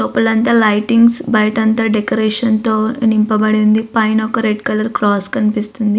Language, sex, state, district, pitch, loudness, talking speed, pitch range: Telugu, female, Andhra Pradesh, Visakhapatnam, 220 Hz, -14 LUFS, 140 wpm, 215-225 Hz